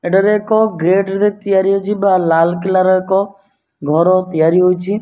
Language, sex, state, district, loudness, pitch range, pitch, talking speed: Odia, male, Odisha, Nuapada, -14 LUFS, 180-200 Hz, 190 Hz, 145 wpm